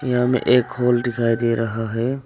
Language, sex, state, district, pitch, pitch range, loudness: Hindi, male, Arunachal Pradesh, Longding, 120 Hz, 115-125 Hz, -20 LUFS